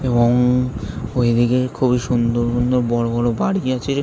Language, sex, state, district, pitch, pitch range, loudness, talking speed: Bengali, male, West Bengal, Jalpaiguri, 120 Hz, 120-125 Hz, -18 LUFS, 135 wpm